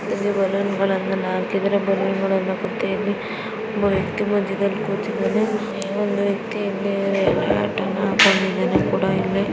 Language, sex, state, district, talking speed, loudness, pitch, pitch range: Kannada, female, Karnataka, Mysore, 75 wpm, -21 LUFS, 200 Hz, 195-210 Hz